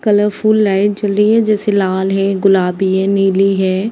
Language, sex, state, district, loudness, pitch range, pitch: Hindi, female, Uttar Pradesh, Varanasi, -13 LUFS, 195-210 Hz, 195 Hz